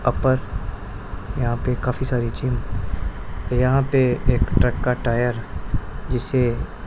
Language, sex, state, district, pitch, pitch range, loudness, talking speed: Hindi, male, Punjab, Pathankot, 120 Hz, 100-125 Hz, -23 LUFS, 115 wpm